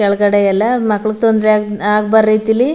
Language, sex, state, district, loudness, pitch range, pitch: Kannada, female, Karnataka, Mysore, -13 LUFS, 205-220 Hz, 215 Hz